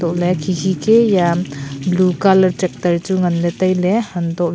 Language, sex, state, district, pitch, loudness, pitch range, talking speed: Wancho, female, Arunachal Pradesh, Longding, 180 Hz, -16 LUFS, 170-185 Hz, 170 wpm